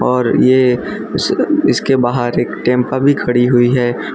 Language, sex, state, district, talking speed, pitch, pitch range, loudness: Hindi, male, Gujarat, Valsad, 160 wpm, 125 Hz, 120-130 Hz, -14 LUFS